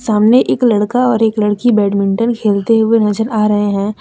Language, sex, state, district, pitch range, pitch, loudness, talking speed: Hindi, female, Jharkhand, Deoghar, 210-230 Hz, 215 Hz, -13 LUFS, 195 wpm